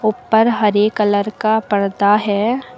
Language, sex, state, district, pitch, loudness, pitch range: Hindi, female, Uttar Pradesh, Lucknow, 215 Hz, -16 LUFS, 205-220 Hz